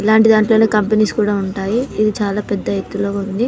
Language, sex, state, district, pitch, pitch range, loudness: Telugu, female, Telangana, Nalgonda, 210 Hz, 200-220 Hz, -16 LUFS